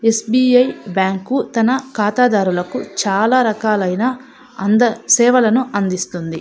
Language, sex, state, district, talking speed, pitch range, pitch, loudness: Telugu, female, Andhra Pradesh, Anantapur, 110 wpm, 195-250 Hz, 225 Hz, -16 LUFS